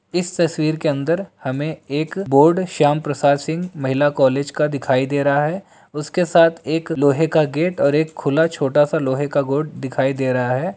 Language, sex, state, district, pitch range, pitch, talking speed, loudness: Hindi, male, Bihar, Jamui, 140-160 Hz, 150 Hz, 195 wpm, -18 LUFS